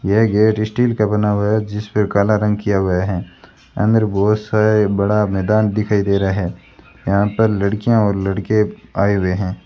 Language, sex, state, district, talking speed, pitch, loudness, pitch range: Hindi, male, Rajasthan, Bikaner, 190 wpm, 105 Hz, -17 LUFS, 100-105 Hz